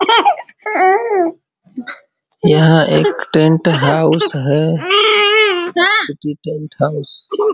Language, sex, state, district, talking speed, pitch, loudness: Hindi, male, Uttar Pradesh, Varanasi, 40 wpm, 180 Hz, -13 LUFS